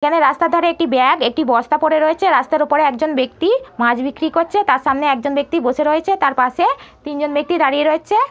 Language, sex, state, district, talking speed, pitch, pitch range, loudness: Bengali, female, West Bengal, North 24 Parganas, 200 wpm, 300 Hz, 275-330 Hz, -16 LUFS